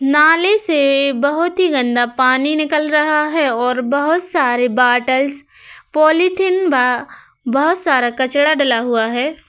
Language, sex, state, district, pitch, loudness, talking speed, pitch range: Hindi, female, Uttar Pradesh, Muzaffarnagar, 285 Hz, -15 LUFS, 135 wpm, 255-310 Hz